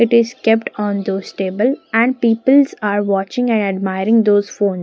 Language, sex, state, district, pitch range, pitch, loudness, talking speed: English, female, Maharashtra, Gondia, 195-235 Hz, 210 Hz, -16 LUFS, 175 wpm